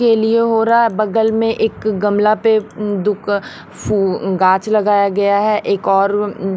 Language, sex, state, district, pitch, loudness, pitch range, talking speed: Hindi, female, Haryana, Rohtak, 210 Hz, -15 LUFS, 200-220 Hz, 175 wpm